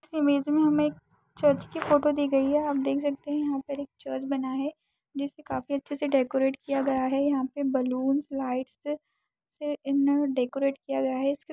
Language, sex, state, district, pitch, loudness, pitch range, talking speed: Hindi, female, Uttar Pradesh, Ghazipur, 280 Hz, -28 LUFS, 270-295 Hz, 205 wpm